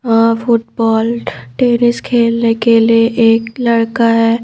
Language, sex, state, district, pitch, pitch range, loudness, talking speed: Hindi, female, Madhya Pradesh, Bhopal, 230 Hz, 230-235 Hz, -12 LUFS, 120 wpm